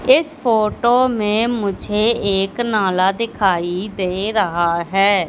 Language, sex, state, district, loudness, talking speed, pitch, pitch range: Hindi, female, Madhya Pradesh, Katni, -18 LUFS, 115 wpm, 210 Hz, 190-230 Hz